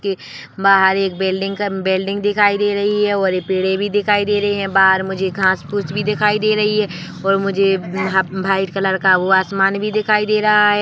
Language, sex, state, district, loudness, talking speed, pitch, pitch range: Hindi, female, Chhattisgarh, Bilaspur, -16 LUFS, 195 wpm, 195 Hz, 190-205 Hz